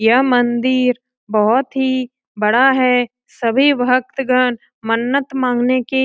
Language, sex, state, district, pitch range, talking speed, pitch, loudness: Hindi, female, Bihar, Lakhisarai, 240-260 Hz, 120 wpm, 255 Hz, -16 LUFS